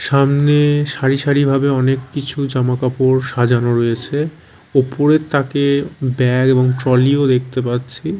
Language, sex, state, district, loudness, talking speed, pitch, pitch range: Bengali, male, Chhattisgarh, Raipur, -16 LUFS, 125 wpm, 135 Hz, 125-140 Hz